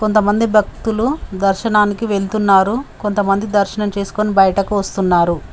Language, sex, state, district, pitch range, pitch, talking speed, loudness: Telugu, female, Telangana, Mahabubabad, 195-215 Hz, 205 Hz, 100 wpm, -16 LUFS